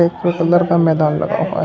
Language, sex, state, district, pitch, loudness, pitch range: Hindi, male, Uttar Pradesh, Shamli, 170 Hz, -15 LUFS, 165-175 Hz